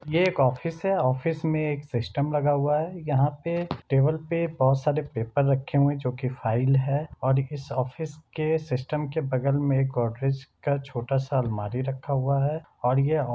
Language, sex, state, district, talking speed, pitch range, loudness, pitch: Hindi, male, Jharkhand, Sahebganj, 200 wpm, 130-155 Hz, -26 LUFS, 140 Hz